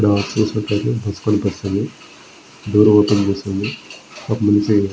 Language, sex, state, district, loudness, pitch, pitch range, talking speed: Telugu, male, Andhra Pradesh, Srikakulam, -18 LUFS, 105 Hz, 100-105 Hz, 95 wpm